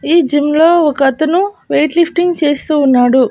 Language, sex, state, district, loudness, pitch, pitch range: Telugu, female, Andhra Pradesh, Annamaya, -12 LUFS, 305 Hz, 280-340 Hz